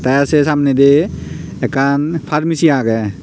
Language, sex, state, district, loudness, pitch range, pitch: Chakma, male, Tripura, Unakoti, -14 LUFS, 135-150 Hz, 140 Hz